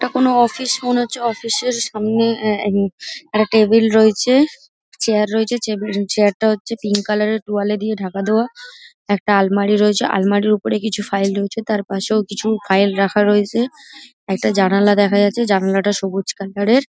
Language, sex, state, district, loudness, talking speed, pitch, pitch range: Bengali, female, West Bengal, Dakshin Dinajpur, -17 LUFS, 165 wpm, 210 Hz, 200-230 Hz